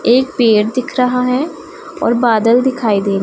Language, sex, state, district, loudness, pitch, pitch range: Hindi, female, Punjab, Pathankot, -14 LUFS, 250 Hz, 225-260 Hz